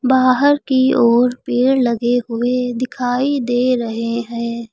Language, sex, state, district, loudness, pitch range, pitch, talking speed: Hindi, female, Uttar Pradesh, Lucknow, -16 LUFS, 235-260 Hz, 245 Hz, 125 wpm